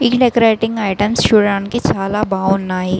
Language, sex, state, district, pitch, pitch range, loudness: Telugu, female, Andhra Pradesh, Srikakulam, 205 Hz, 195-225 Hz, -15 LUFS